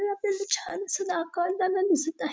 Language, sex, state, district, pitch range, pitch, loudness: Marathi, female, Maharashtra, Dhule, 350-395 Hz, 380 Hz, -28 LUFS